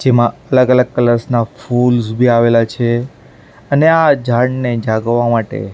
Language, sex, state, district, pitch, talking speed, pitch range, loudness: Gujarati, male, Maharashtra, Mumbai Suburban, 120 Hz, 145 wpm, 115-130 Hz, -13 LUFS